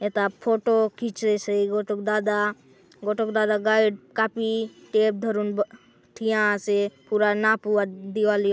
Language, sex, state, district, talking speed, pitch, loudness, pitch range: Halbi, female, Chhattisgarh, Bastar, 135 wpm, 210 Hz, -24 LUFS, 205-220 Hz